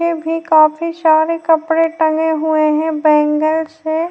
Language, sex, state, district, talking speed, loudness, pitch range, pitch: Hindi, female, Uttar Pradesh, Jyotiba Phule Nagar, 145 wpm, -14 LUFS, 315-325 Hz, 320 Hz